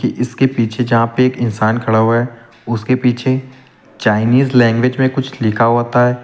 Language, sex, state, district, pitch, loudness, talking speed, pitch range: Hindi, male, Uttar Pradesh, Lucknow, 120 Hz, -15 LUFS, 175 wpm, 115-130 Hz